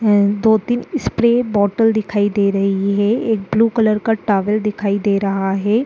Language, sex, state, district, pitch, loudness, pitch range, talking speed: Hindi, female, Uttar Pradesh, Deoria, 210 Hz, -16 LUFS, 200-225 Hz, 185 wpm